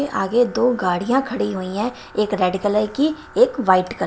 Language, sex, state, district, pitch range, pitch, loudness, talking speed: Hindi, female, Himachal Pradesh, Shimla, 190-255 Hz, 210 Hz, -20 LUFS, 205 wpm